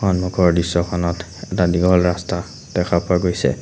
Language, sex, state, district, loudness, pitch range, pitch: Assamese, male, Assam, Sonitpur, -19 LUFS, 85-90 Hz, 90 Hz